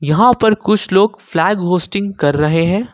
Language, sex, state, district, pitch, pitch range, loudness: Hindi, male, Jharkhand, Ranchi, 195 Hz, 165-210 Hz, -14 LUFS